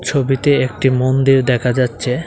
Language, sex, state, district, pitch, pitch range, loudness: Bengali, male, Tripura, Dhalai, 130 Hz, 125-135 Hz, -15 LUFS